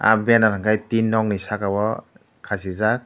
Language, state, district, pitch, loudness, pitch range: Kokborok, Tripura, Dhalai, 110 Hz, -20 LUFS, 105-110 Hz